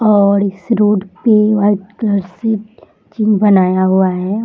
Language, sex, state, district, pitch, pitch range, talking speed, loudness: Hindi, female, Bihar, Jamui, 205 Hz, 190-215 Hz, 160 wpm, -13 LUFS